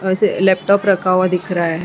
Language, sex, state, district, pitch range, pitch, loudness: Hindi, female, Uttarakhand, Tehri Garhwal, 180-195 Hz, 185 Hz, -15 LUFS